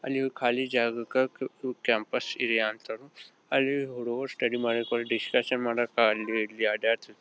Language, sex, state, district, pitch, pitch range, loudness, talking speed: Kannada, male, Karnataka, Belgaum, 120 Hz, 115-130 Hz, -28 LUFS, 110 wpm